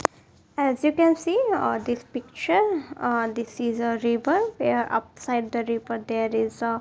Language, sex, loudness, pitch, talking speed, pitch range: English, female, -25 LUFS, 240 Hz, 165 wpm, 230-330 Hz